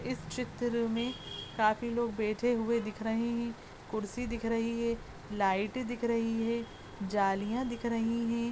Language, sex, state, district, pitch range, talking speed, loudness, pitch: Hindi, female, Goa, North and South Goa, 220-235 Hz, 155 wpm, -33 LUFS, 230 Hz